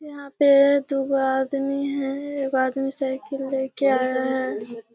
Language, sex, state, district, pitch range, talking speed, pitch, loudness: Hindi, female, Bihar, Kishanganj, 265-280 Hz, 145 wpm, 270 Hz, -23 LUFS